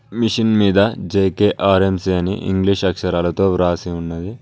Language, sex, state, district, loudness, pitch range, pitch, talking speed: Telugu, male, Telangana, Mahabubabad, -17 LUFS, 90-100 Hz, 95 Hz, 110 wpm